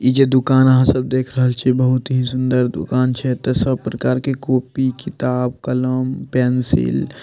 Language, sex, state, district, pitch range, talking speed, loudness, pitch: Maithili, male, Bihar, Madhepura, 125-130 Hz, 180 wpm, -17 LUFS, 130 Hz